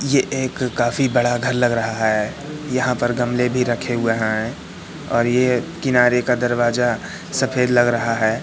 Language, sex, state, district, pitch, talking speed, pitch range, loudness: Hindi, male, Madhya Pradesh, Katni, 120 Hz, 170 wpm, 120-125 Hz, -19 LUFS